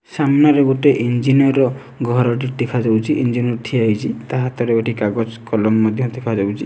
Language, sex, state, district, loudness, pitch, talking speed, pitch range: Odia, male, Odisha, Nuapada, -17 LUFS, 120 Hz, 145 wpm, 115-135 Hz